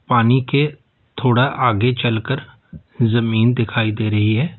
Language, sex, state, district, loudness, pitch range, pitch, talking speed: Hindi, male, Uttar Pradesh, Lalitpur, -18 LUFS, 115-130 Hz, 120 Hz, 145 wpm